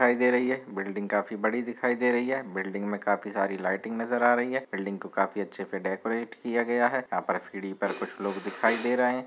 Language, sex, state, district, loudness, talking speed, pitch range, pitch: Hindi, male, Bihar, Darbhanga, -29 LUFS, 245 wpm, 100-120 Hz, 110 Hz